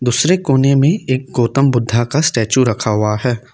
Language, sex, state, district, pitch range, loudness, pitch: Hindi, male, Assam, Kamrup Metropolitan, 120-140 Hz, -15 LUFS, 125 Hz